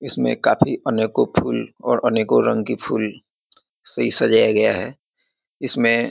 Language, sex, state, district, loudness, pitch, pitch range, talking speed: Hindi, male, Bihar, Muzaffarpur, -19 LUFS, 110 Hz, 110-115 Hz, 145 wpm